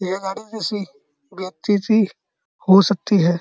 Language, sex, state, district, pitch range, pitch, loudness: Hindi, male, Uttar Pradesh, Muzaffarnagar, 185-205 Hz, 195 Hz, -19 LUFS